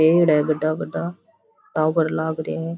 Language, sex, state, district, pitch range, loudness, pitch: Rajasthani, female, Rajasthan, Churu, 155-170 Hz, -21 LUFS, 160 Hz